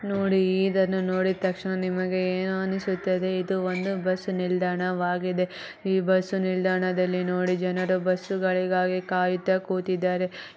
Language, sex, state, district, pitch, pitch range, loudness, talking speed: Kannada, female, Karnataka, Bellary, 185 Hz, 185-190 Hz, -26 LUFS, 115 wpm